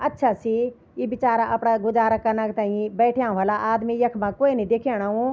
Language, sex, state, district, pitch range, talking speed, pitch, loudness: Garhwali, female, Uttarakhand, Tehri Garhwal, 220-245 Hz, 170 wpm, 230 Hz, -22 LUFS